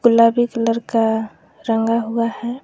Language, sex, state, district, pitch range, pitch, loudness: Hindi, female, Jharkhand, Garhwa, 225-235 Hz, 230 Hz, -18 LUFS